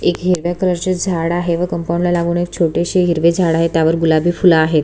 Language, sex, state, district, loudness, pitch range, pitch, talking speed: Marathi, female, Maharashtra, Solapur, -15 LUFS, 165-175 Hz, 170 Hz, 235 wpm